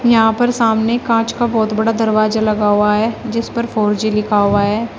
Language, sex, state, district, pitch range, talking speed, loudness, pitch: Hindi, female, Uttar Pradesh, Shamli, 215-230 Hz, 215 wpm, -15 LUFS, 220 Hz